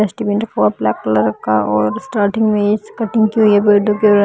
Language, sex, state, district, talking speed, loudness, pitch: Hindi, female, Bihar, Patna, 210 wpm, -15 LUFS, 205 Hz